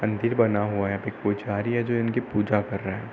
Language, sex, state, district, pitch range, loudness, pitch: Hindi, male, Uttar Pradesh, Hamirpur, 100-115 Hz, -25 LUFS, 105 Hz